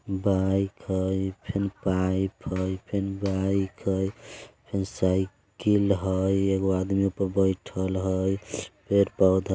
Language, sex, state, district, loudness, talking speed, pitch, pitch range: Bajjika, male, Bihar, Vaishali, -27 LUFS, 115 wpm, 95 Hz, 95-100 Hz